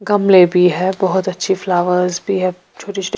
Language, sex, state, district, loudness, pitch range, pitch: Hindi, female, Punjab, Pathankot, -15 LUFS, 180-190 Hz, 185 Hz